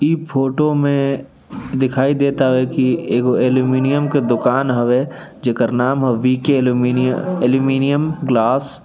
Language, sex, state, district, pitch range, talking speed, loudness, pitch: Bhojpuri, male, Bihar, East Champaran, 125-140 Hz, 140 wpm, -16 LUFS, 130 Hz